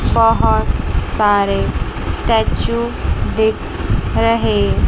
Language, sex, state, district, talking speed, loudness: Hindi, female, Chandigarh, Chandigarh, 60 wpm, -16 LUFS